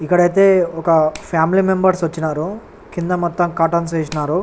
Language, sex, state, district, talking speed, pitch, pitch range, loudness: Telugu, male, Telangana, Nalgonda, 120 wpm, 170 Hz, 160-180 Hz, -17 LUFS